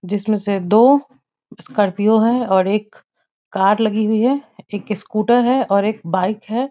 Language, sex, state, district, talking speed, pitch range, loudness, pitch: Hindi, female, Bihar, Muzaffarpur, 170 wpm, 200-230 Hz, -17 LUFS, 215 Hz